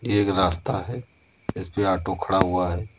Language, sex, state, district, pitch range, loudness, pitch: Hindi, male, Uttar Pradesh, Muzaffarnagar, 90-105 Hz, -24 LUFS, 95 Hz